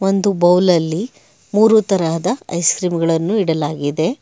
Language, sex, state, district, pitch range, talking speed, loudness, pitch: Kannada, male, Karnataka, Bangalore, 165-205 Hz, 130 wpm, -16 LUFS, 180 Hz